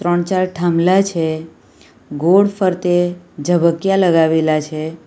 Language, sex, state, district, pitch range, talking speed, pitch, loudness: Gujarati, female, Gujarat, Valsad, 160-185 Hz, 105 wpm, 175 Hz, -16 LUFS